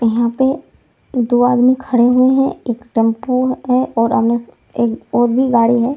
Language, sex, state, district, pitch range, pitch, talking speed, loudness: Hindi, female, Bihar, Darbhanga, 235-260 Hz, 245 Hz, 190 wpm, -15 LUFS